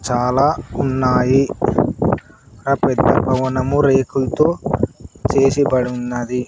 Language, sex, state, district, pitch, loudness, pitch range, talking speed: Telugu, male, Andhra Pradesh, Sri Satya Sai, 130 Hz, -17 LUFS, 125-135 Hz, 75 wpm